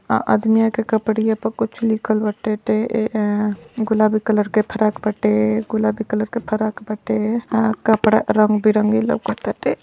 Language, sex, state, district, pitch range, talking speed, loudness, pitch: Bhojpuri, female, Uttar Pradesh, Ghazipur, 215-220 Hz, 165 wpm, -19 LUFS, 215 Hz